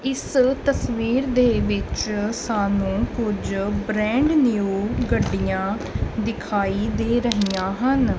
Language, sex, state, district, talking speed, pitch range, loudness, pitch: Punjabi, male, Punjab, Kapurthala, 90 wpm, 195-245 Hz, -22 LUFS, 215 Hz